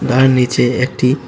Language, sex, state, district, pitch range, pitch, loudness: Bengali, male, Tripura, West Tripura, 125-130 Hz, 125 Hz, -14 LUFS